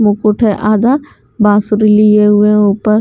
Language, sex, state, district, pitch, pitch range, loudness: Hindi, female, Bihar, West Champaran, 210 Hz, 210-215 Hz, -10 LUFS